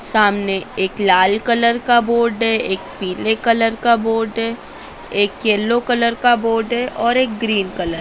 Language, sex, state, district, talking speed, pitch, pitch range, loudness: Hindi, female, Madhya Pradesh, Dhar, 180 wpm, 225 Hz, 205-235 Hz, -17 LUFS